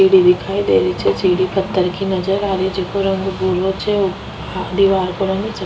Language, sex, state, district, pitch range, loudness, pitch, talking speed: Rajasthani, female, Rajasthan, Nagaur, 185-195 Hz, -17 LUFS, 190 Hz, 210 wpm